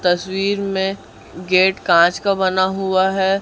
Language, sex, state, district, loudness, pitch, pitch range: Hindi, male, Chhattisgarh, Raipur, -17 LUFS, 190 Hz, 185-195 Hz